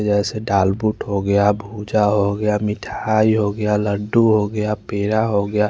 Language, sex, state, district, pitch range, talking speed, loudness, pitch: Hindi, male, Chandigarh, Chandigarh, 100-110 Hz, 125 wpm, -19 LUFS, 105 Hz